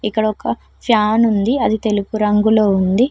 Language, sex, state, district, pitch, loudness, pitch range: Telugu, female, Telangana, Mahabubabad, 215 Hz, -16 LUFS, 210-220 Hz